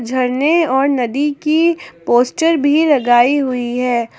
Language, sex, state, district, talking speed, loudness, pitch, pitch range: Hindi, female, Jharkhand, Palamu, 130 wpm, -15 LUFS, 270 Hz, 245-305 Hz